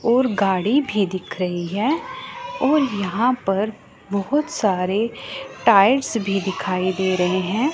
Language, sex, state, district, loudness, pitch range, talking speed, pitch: Hindi, female, Punjab, Pathankot, -20 LUFS, 190-255 Hz, 130 wpm, 205 Hz